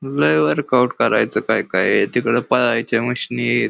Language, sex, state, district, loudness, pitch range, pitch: Marathi, male, Maharashtra, Pune, -18 LUFS, 115-125 Hz, 120 Hz